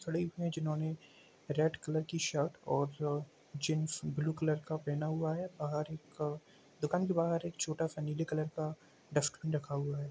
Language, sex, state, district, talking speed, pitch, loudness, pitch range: Hindi, male, Bihar, Gopalganj, 165 wpm, 155 Hz, -37 LUFS, 150-160 Hz